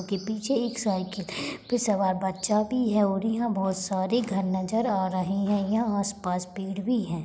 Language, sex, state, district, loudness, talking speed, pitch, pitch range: Hindi, female, Uttarakhand, Tehri Garhwal, -27 LUFS, 200 wpm, 200 Hz, 190-225 Hz